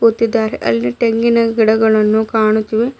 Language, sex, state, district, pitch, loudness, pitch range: Kannada, female, Karnataka, Bidar, 220 Hz, -14 LUFS, 215-230 Hz